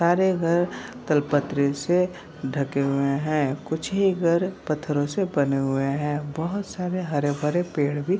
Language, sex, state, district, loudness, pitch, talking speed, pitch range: Hindi, male, Bihar, Kishanganj, -24 LUFS, 150 Hz, 175 wpm, 140-175 Hz